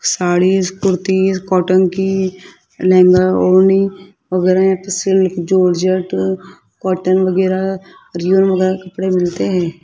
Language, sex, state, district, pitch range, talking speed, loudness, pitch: Hindi, male, Rajasthan, Jaipur, 180-190 Hz, 100 wpm, -14 LUFS, 185 Hz